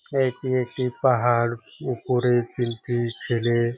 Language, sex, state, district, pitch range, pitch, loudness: Bengali, male, West Bengal, Jhargram, 120-130 Hz, 120 Hz, -24 LUFS